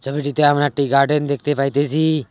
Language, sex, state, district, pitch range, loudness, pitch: Bengali, male, West Bengal, Cooch Behar, 140-145 Hz, -18 LUFS, 145 Hz